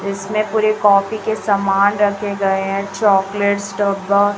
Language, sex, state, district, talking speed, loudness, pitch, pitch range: Hindi, male, Chhattisgarh, Raipur, 135 wpm, -17 LUFS, 200 Hz, 195-205 Hz